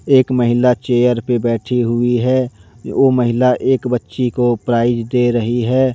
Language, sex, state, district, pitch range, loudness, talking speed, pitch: Hindi, male, Jharkhand, Deoghar, 120-125 Hz, -15 LUFS, 160 wpm, 120 Hz